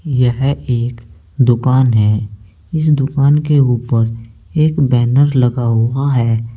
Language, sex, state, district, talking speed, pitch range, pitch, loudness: Hindi, male, Uttar Pradesh, Saharanpur, 120 wpm, 115-140 Hz, 125 Hz, -14 LUFS